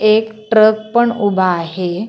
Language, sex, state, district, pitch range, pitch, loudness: Marathi, female, Maharashtra, Solapur, 185-220 Hz, 215 Hz, -14 LUFS